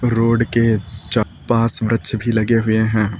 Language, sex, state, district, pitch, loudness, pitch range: Hindi, male, Uttar Pradesh, Lucknow, 115 Hz, -16 LUFS, 110-115 Hz